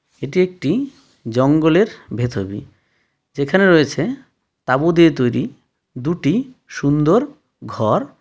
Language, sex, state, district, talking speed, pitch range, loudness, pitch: Bengali, male, West Bengal, Darjeeling, 90 wpm, 130-185 Hz, -17 LUFS, 150 Hz